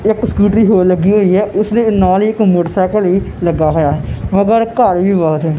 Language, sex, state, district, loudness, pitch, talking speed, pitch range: Punjabi, male, Punjab, Kapurthala, -12 LUFS, 195 Hz, 215 wpm, 180-215 Hz